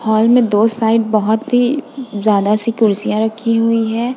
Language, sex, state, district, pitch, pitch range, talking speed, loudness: Hindi, female, Uttar Pradesh, Budaun, 225 Hz, 215-235 Hz, 175 wpm, -15 LUFS